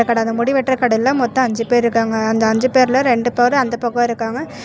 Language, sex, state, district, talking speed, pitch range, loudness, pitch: Tamil, female, Karnataka, Bangalore, 195 wpm, 230-255 Hz, -16 LUFS, 240 Hz